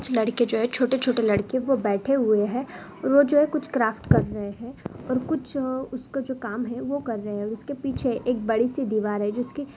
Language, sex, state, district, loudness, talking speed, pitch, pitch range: Hindi, female, Andhra Pradesh, Guntur, -25 LUFS, 225 wpm, 250 Hz, 225-265 Hz